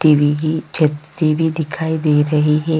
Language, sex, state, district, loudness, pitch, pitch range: Hindi, female, Chhattisgarh, Sukma, -17 LUFS, 155 Hz, 150-160 Hz